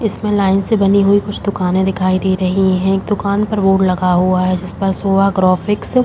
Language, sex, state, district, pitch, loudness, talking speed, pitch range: Hindi, female, Uttar Pradesh, Jalaun, 195 Hz, -15 LUFS, 230 wpm, 185-200 Hz